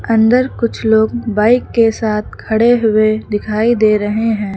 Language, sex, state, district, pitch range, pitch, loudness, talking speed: Hindi, female, Uttar Pradesh, Lucknow, 215-230 Hz, 220 Hz, -14 LUFS, 155 wpm